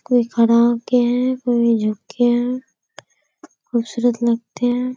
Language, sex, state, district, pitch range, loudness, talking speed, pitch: Hindi, female, Bihar, Kishanganj, 235-245 Hz, -18 LUFS, 145 wpm, 240 Hz